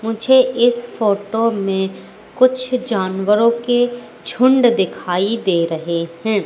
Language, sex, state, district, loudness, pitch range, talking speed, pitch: Hindi, female, Madhya Pradesh, Katni, -17 LUFS, 190-245 Hz, 110 wpm, 225 Hz